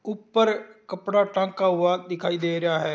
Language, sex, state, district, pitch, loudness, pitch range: Marwari, male, Rajasthan, Nagaur, 185 Hz, -24 LUFS, 175-205 Hz